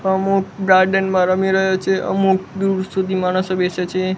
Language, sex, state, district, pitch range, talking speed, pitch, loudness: Gujarati, male, Gujarat, Gandhinagar, 185-190 Hz, 170 wpm, 190 Hz, -17 LUFS